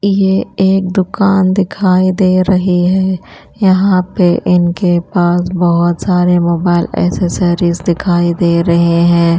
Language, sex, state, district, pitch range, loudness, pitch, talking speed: Hindi, female, Punjab, Kapurthala, 175-190 Hz, -12 LUFS, 180 Hz, 120 wpm